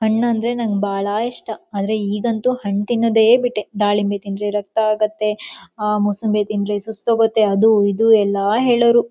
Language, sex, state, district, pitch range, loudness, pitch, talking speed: Kannada, female, Karnataka, Shimoga, 205-225 Hz, -17 LUFS, 215 Hz, 140 wpm